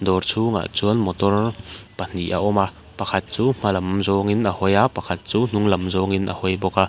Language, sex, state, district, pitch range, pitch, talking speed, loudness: Mizo, male, Mizoram, Aizawl, 95-105 Hz, 100 Hz, 200 wpm, -21 LUFS